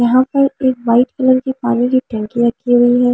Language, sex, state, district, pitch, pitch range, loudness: Hindi, female, Delhi, New Delhi, 245 Hz, 240-260 Hz, -14 LUFS